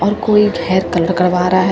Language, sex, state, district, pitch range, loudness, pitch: Hindi, female, Bihar, Katihar, 180-205 Hz, -14 LUFS, 185 Hz